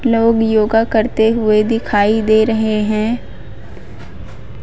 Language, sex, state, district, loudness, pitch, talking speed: Hindi, female, Chhattisgarh, Raipur, -14 LUFS, 215 Hz, 105 wpm